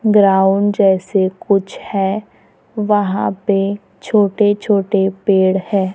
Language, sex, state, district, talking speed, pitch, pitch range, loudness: Hindi, female, Maharashtra, Gondia, 100 wpm, 195 Hz, 190-205 Hz, -15 LUFS